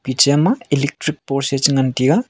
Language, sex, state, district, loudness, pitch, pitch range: Wancho, male, Arunachal Pradesh, Longding, -17 LUFS, 140 Hz, 135-150 Hz